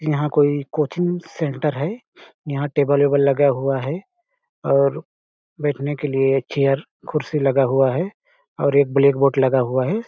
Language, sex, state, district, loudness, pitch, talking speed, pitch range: Hindi, male, Chhattisgarh, Balrampur, -20 LUFS, 145 Hz, 165 wpm, 135-155 Hz